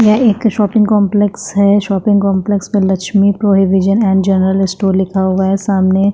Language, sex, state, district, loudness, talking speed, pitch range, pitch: Hindi, female, Maharashtra, Chandrapur, -12 LUFS, 165 wpm, 190-205 Hz, 200 Hz